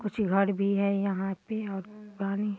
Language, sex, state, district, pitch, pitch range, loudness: Hindi, female, Bihar, Muzaffarpur, 200 Hz, 195-210 Hz, -29 LUFS